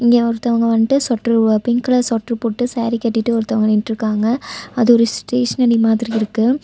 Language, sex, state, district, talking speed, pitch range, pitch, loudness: Tamil, female, Tamil Nadu, Nilgiris, 155 wpm, 225-240 Hz, 230 Hz, -16 LUFS